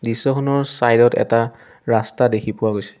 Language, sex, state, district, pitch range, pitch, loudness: Assamese, male, Assam, Sonitpur, 110-135 Hz, 115 Hz, -18 LUFS